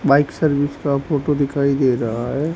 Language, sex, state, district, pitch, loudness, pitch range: Hindi, male, Haryana, Rohtak, 140 Hz, -19 LUFS, 135-145 Hz